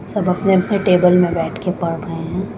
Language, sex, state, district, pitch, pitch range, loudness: Hindi, female, Punjab, Pathankot, 180 Hz, 175-190 Hz, -17 LUFS